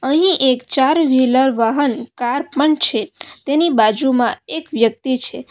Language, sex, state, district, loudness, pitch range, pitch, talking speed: Gujarati, female, Gujarat, Valsad, -16 LUFS, 245-295 Hz, 265 Hz, 140 wpm